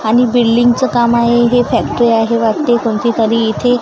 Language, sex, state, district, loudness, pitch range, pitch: Marathi, female, Maharashtra, Gondia, -12 LUFS, 230-245 Hz, 235 Hz